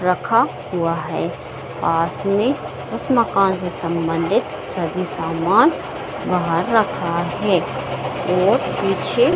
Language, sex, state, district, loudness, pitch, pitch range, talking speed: Hindi, female, Bihar, Saran, -20 LUFS, 180 Hz, 165-205 Hz, 110 wpm